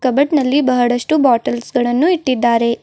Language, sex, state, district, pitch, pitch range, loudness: Kannada, female, Karnataka, Bidar, 255 Hz, 240-280 Hz, -15 LUFS